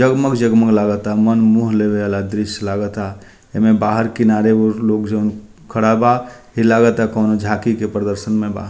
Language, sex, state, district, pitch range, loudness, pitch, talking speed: Bhojpuri, male, Bihar, Muzaffarpur, 105-115 Hz, -16 LUFS, 110 Hz, 195 wpm